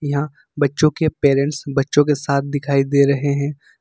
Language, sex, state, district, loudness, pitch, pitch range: Hindi, male, Jharkhand, Ranchi, -18 LUFS, 140 Hz, 140-145 Hz